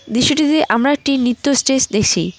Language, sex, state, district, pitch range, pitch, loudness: Bengali, female, West Bengal, Cooch Behar, 225-285 Hz, 265 Hz, -15 LUFS